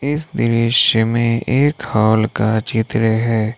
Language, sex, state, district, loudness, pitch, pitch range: Hindi, male, Jharkhand, Ranchi, -16 LUFS, 115 Hz, 110-120 Hz